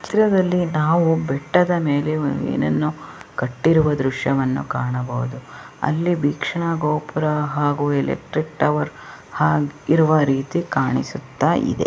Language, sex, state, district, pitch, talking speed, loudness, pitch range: Kannada, female, Karnataka, Belgaum, 150 Hz, 100 wpm, -20 LUFS, 130-160 Hz